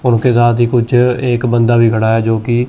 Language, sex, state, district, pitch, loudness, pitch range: Hindi, male, Chandigarh, Chandigarh, 120 Hz, -12 LUFS, 115-125 Hz